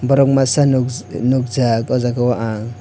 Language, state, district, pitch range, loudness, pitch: Kokborok, Tripura, West Tripura, 120-130 Hz, -16 LUFS, 125 Hz